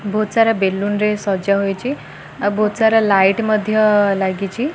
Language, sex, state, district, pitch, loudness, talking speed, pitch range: Odia, female, Odisha, Khordha, 210 Hz, -16 LUFS, 125 wpm, 195-215 Hz